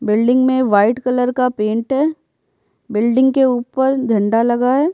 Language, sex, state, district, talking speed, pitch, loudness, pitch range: Hindi, female, Bihar, Kishanganj, 155 wpm, 250 Hz, -16 LUFS, 230-265 Hz